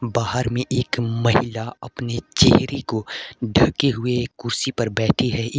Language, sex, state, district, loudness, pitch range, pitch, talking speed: Hindi, male, Jharkhand, Garhwa, -21 LUFS, 115-125 Hz, 120 Hz, 150 wpm